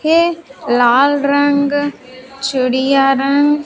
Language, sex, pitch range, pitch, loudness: Hindi, female, 265-290 Hz, 280 Hz, -14 LUFS